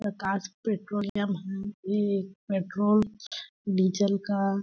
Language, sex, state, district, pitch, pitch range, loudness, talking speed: Hindi, female, Chhattisgarh, Balrampur, 200 Hz, 195-205 Hz, -29 LUFS, 90 wpm